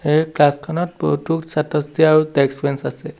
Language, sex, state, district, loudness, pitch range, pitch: Assamese, male, Assam, Sonitpur, -18 LUFS, 145-160 Hz, 155 Hz